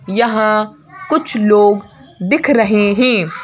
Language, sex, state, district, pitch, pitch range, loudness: Hindi, female, Madhya Pradesh, Bhopal, 215 Hz, 205-250 Hz, -13 LUFS